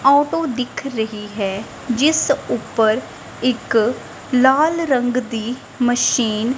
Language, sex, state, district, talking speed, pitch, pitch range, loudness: Punjabi, female, Punjab, Kapurthala, 110 wpm, 245 Hz, 225-265 Hz, -19 LUFS